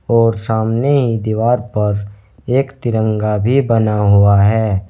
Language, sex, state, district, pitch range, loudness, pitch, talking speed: Hindi, male, Uttar Pradesh, Saharanpur, 105-120 Hz, -15 LUFS, 110 Hz, 135 wpm